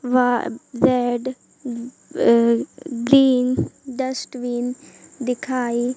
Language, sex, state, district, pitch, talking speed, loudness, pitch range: Hindi, female, Madhya Pradesh, Katni, 250 Hz, 60 wpm, -20 LUFS, 245-260 Hz